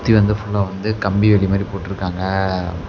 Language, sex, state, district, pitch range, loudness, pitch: Tamil, male, Tamil Nadu, Namakkal, 95-105 Hz, -18 LUFS, 100 Hz